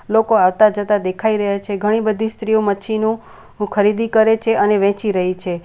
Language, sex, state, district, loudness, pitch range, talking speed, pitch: Gujarati, female, Gujarat, Valsad, -17 LUFS, 200-220 Hz, 180 wpm, 210 Hz